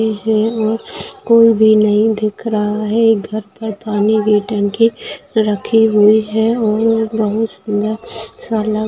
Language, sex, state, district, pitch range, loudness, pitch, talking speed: Hindi, female, Bihar, Araria, 210-225 Hz, -15 LUFS, 220 Hz, 150 wpm